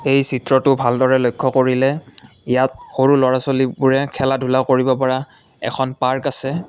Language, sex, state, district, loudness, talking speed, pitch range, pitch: Assamese, male, Assam, Kamrup Metropolitan, -17 LUFS, 145 wpm, 130-135 Hz, 130 Hz